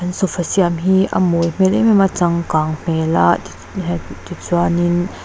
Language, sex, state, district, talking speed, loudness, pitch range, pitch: Mizo, female, Mizoram, Aizawl, 160 wpm, -16 LUFS, 165-185 Hz, 175 Hz